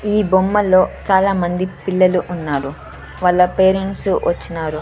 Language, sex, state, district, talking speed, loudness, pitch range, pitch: Telugu, female, Andhra Pradesh, Sri Satya Sai, 110 wpm, -16 LUFS, 175-195 Hz, 185 Hz